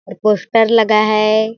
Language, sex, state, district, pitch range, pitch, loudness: Hindi, female, Chhattisgarh, Balrampur, 215-225 Hz, 215 Hz, -13 LUFS